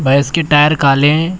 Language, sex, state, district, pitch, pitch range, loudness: Hindi, male, Uttar Pradesh, Shamli, 145 Hz, 140-160 Hz, -11 LUFS